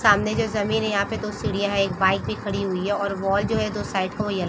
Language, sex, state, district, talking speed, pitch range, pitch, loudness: Hindi, female, Jharkhand, Sahebganj, 335 wpm, 195-210 Hz, 200 Hz, -23 LUFS